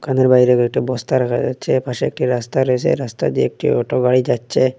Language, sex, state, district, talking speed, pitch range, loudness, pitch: Bengali, male, Assam, Hailakandi, 200 wpm, 125-130 Hz, -17 LUFS, 125 Hz